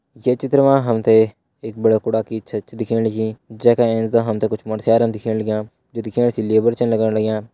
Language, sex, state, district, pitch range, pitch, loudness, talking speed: Garhwali, male, Uttarakhand, Uttarkashi, 110-115 Hz, 110 Hz, -18 LUFS, 205 wpm